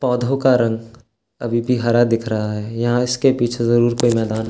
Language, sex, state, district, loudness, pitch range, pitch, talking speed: Hindi, male, Uttarakhand, Tehri Garhwal, -18 LUFS, 115-125 Hz, 120 Hz, 215 wpm